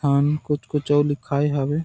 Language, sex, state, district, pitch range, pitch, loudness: Chhattisgarhi, male, Chhattisgarh, Sarguja, 140-150 Hz, 145 Hz, -22 LUFS